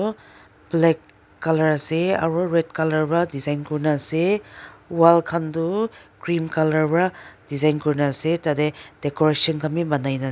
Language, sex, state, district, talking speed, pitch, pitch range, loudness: Nagamese, female, Nagaland, Dimapur, 145 wpm, 160 Hz, 150-170 Hz, -22 LUFS